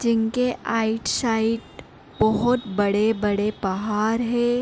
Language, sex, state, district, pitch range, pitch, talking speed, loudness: Hindi, female, Jharkhand, Sahebganj, 210-235 Hz, 225 Hz, 115 wpm, -23 LUFS